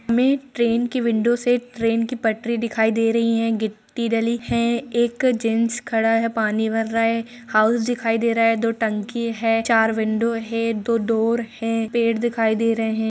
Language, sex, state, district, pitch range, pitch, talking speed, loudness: Hindi, female, Uttar Pradesh, Jalaun, 225-235 Hz, 230 Hz, 190 wpm, -21 LUFS